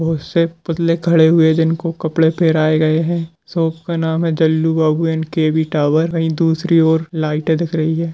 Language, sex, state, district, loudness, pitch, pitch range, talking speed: Hindi, male, Bihar, Madhepura, -16 LUFS, 160 Hz, 160-165 Hz, 200 wpm